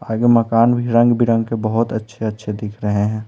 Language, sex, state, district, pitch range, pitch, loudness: Hindi, male, Bihar, Patna, 110-115 Hz, 115 Hz, -17 LUFS